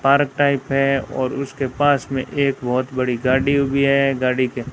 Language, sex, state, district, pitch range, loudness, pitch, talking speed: Hindi, female, Rajasthan, Bikaner, 130-140 Hz, -19 LUFS, 135 Hz, 190 wpm